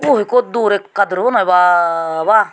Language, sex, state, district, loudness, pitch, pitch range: Chakma, female, Tripura, Unakoti, -14 LUFS, 200 Hz, 175-210 Hz